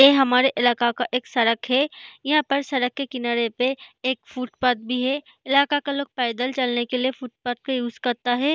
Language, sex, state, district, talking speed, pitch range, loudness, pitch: Hindi, female, Bihar, East Champaran, 205 wpm, 245-275 Hz, -23 LUFS, 255 Hz